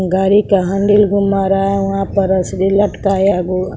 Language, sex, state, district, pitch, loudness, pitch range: Hindi, female, Bihar, West Champaran, 195 Hz, -14 LUFS, 190-200 Hz